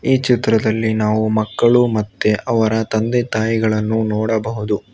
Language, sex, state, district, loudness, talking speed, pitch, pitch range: Kannada, male, Karnataka, Bangalore, -17 LUFS, 110 wpm, 110 Hz, 110-115 Hz